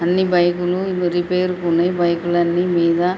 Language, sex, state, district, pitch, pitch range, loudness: Telugu, female, Telangana, Nalgonda, 175 Hz, 175-180 Hz, -18 LUFS